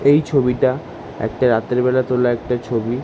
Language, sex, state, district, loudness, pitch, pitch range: Bengali, male, West Bengal, Jalpaiguri, -18 LUFS, 125 Hz, 120-130 Hz